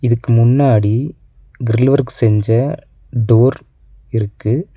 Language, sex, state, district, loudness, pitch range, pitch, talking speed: Tamil, male, Tamil Nadu, Nilgiris, -15 LUFS, 110-130 Hz, 115 Hz, 90 wpm